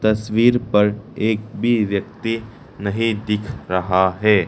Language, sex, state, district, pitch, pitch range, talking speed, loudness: Hindi, male, Arunachal Pradesh, Lower Dibang Valley, 110 Hz, 105-115 Hz, 120 wpm, -20 LUFS